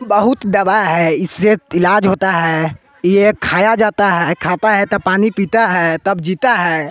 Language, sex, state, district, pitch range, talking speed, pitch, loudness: Hindi, male, Bihar, West Champaran, 170-210 Hz, 175 wpm, 195 Hz, -14 LUFS